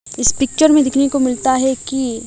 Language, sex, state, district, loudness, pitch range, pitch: Hindi, female, Odisha, Malkangiri, -15 LUFS, 255-275 Hz, 265 Hz